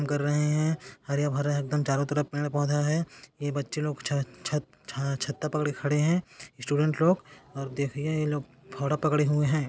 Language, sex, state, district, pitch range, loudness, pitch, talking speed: Hindi, male, Chhattisgarh, Kabirdham, 140-150 Hz, -28 LUFS, 145 Hz, 180 wpm